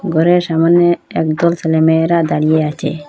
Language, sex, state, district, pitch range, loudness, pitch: Bengali, female, Assam, Hailakandi, 160-170 Hz, -13 LUFS, 160 Hz